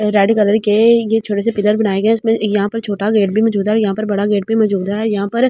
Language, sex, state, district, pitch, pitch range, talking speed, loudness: Hindi, female, Delhi, New Delhi, 210 Hz, 205-220 Hz, 305 wpm, -15 LUFS